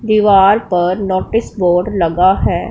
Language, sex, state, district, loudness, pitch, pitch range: Hindi, female, Punjab, Pathankot, -13 LUFS, 190 Hz, 180-210 Hz